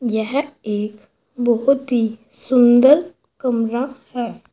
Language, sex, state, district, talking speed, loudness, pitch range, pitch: Hindi, female, Uttar Pradesh, Saharanpur, 95 wpm, -18 LUFS, 230-265 Hz, 245 Hz